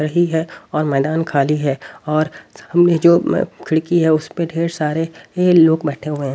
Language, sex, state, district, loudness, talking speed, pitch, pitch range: Hindi, male, Haryana, Rohtak, -17 LUFS, 190 wpm, 160 Hz, 150-170 Hz